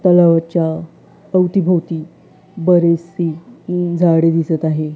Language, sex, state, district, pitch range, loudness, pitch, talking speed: Marathi, female, Maharashtra, Gondia, 165-180 Hz, -16 LUFS, 170 Hz, 85 wpm